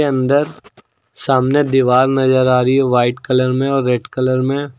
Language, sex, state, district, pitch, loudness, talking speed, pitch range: Hindi, male, Uttar Pradesh, Lucknow, 130 Hz, -15 LUFS, 175 wpm, 130-135 Hz